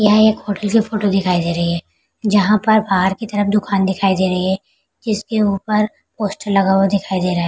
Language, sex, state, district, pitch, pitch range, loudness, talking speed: Hindi, female, Bihar, Araria, 200 Hz, 190-210 Hz, -17 LUFS, 225 wpm